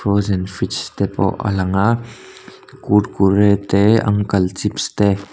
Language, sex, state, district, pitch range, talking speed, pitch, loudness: Mizo, male, Mizoram, Aizawl, 95-105 Hz, 135 wpm, 100 Hz, -17 LUFS